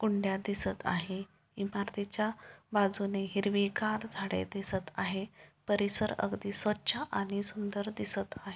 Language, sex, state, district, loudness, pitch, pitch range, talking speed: Marathi, female, Maharashtra, Pune, -34 LUFS, 200 Hz, 195-205 Hz, 110 wpm